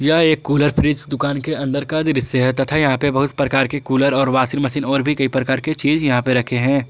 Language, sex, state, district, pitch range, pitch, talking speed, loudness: Hindi, male, Jharkhand, Ranchi, 135-145 Hz, 140 Hz, 260 wpm, -17 LUFS